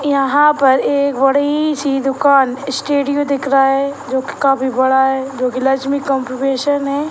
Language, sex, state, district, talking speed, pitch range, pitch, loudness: Hindi, female, Bihar, Sitamarhi, 170 wpm, 265-280 Hz, 275 Hz, -15 LUFS